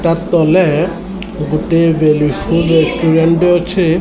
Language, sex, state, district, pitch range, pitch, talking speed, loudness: Odia, male, Odisha, Sambalpur, 160-175 Hz, 165 Hz, 90 wpm, -12 LUFS